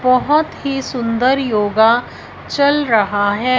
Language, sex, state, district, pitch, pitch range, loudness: Hindi, female, Punjab, Fazilka, 255 Hz, 220-275 Hz, -15 LUFS